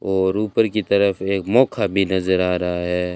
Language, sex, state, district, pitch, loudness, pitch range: Hindi, male, Rajasthan, Bikaner, 95 Hz, -19 LUFS, 90-105 Hz